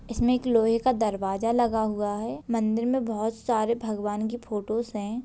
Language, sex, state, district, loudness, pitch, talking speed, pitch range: Hindi, male, Bihar, Gopalganj, -26 LUFS, 225 Hz, 185 wpm, 215-235 Hz